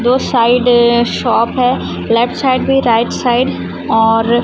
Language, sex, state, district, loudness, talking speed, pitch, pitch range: Hindi, female, Chhattisgarh, Raipur, -13 LUFS, 135 wpm, 240 Hz, 235-250 Hz